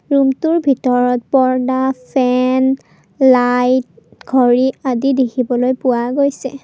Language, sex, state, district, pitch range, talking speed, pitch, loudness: Assamese, female, Assam, Kamrup Metropolitan, 250-270 Hz, 80 wpm, 260 Hz, -15 LUFS